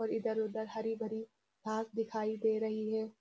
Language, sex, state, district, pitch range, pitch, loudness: Hindi, female, Uttarakhand, Uttarkashi, 220-225 Hz, 220 Hz, -37 LUFS